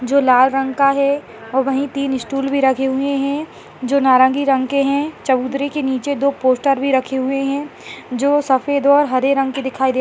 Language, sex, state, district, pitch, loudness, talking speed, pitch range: Hindi, female, Bihar, Purnia, 275 Hz, -17 LUFS, 210 wpm, 265-280 Hz